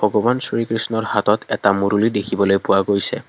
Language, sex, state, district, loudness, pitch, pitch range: Assamese, male, Assam, Kamrup Metropolitan, -18 LUFS, 105 Hz, 100-115 Hz